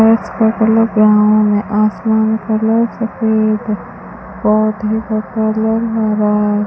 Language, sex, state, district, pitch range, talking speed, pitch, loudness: Hindi, female, Rajasthan, Bikaner, 215-220 Hz, 125 wpm, 220 Hz, -14 LUFS